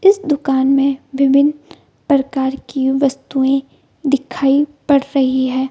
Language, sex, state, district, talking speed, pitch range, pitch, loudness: Hindi, female, Bihar, Gaya, 125 wpm, 265-285 Hz, 275 Hz, -16 LUFS